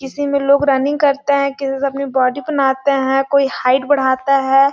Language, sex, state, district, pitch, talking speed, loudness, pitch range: Hindi, female, Chhattisgarh, Sarguja, 275 Hz, 205 wpm, -15 LUFS, 265-280 Hz